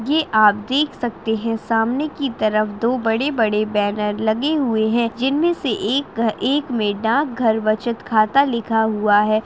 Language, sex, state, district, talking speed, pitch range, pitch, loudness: Hindi, female, Bihar, Saharsa, 170 wpm, 215-265 Hz, 225 Hz, -19 LUFS